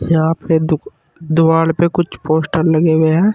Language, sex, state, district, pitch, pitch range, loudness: Hindi, male, Uttar Pradesh, Saharanpur, 160 Hz, 160-165 Hz, -15 LUFS